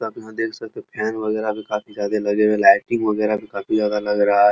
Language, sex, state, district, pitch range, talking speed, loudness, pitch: Hindi, male, Uttar Pradesh, Muzaffarnagar, 105-110 Hz, 280 wpm, -20 LUFS, 105 Hz